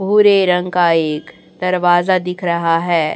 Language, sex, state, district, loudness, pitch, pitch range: Hindi, female, Chhattisgarh, Raipur, -15 LUFS, 175 Hz, 165-185 Hz